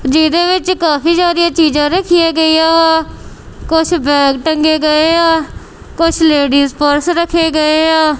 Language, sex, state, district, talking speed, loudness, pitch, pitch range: Punjabi, female, Punjab, Kapurthala, 125 wpm, -11 LUFS, 320 Hz, 305-335 Hz